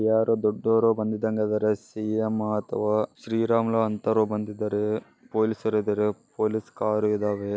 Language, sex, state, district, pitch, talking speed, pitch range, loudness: Kannada, male, Karnataka, Bellary, 110 Hz, 125 wpm, 105-110 Hz, -26 LUFS